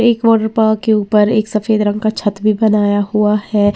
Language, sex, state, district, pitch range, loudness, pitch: Hindi, female, Uttar Pradesh, Lalitpur, 210-220 Hz, -14 LUFS, 215 Hz